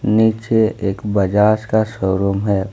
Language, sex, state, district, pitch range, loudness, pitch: Hindi, male, Jharkhand, Ranchi, 100-110 Hz, -17 LUFS, 105 Hz